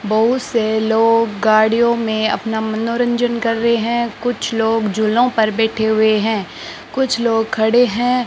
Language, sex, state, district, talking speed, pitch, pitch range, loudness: Hindi, male, Rajasthan, Bikaner, 150 wpm, 225 Hz, 220-235 Hz, -16 LUFS